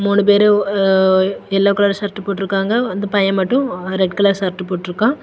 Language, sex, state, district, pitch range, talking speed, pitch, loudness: Tamil, female, Tamil Nadu, Kanyakumari, 190-205 Hz, 150 wpm, 200 Hz, -16 LUFS